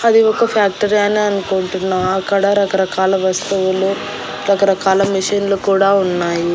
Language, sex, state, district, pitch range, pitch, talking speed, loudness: Telugu, female, Andhra Pradesh, Annamaya, 190-200 Hz, 195 Hz, 110 wpm, -15 LUFS